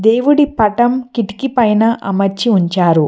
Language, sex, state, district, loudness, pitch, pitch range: Telugu, female, Telangana, Mahabubabad, -14 LUFS, 225 Hz, 195-245 Hz